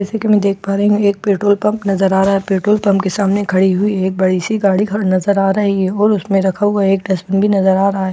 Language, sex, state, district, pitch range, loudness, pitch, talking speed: Hindi, female, Bihar, Katihar, 190-205 Hz, -14 LUFS, 195 Hz, 295 wpm